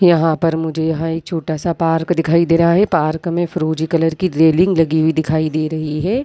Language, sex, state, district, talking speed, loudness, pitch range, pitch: Hindi, female, Chhattisgarh, Raigarh, 230 wpm, -16 LUFS, 160-170 Hz, 165 Hz